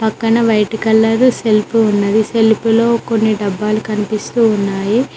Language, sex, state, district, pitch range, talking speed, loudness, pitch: Telugu, female, Telangana, Mahabubabad, 210-225 Hz, 130 wpm, -14 LUFS, 220 Hz